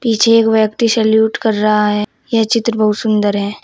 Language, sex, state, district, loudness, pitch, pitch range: Hindi, female, Uttar Pradesh, Saharanpur, -13 LUFS, 220 Hz, 210-230 Hz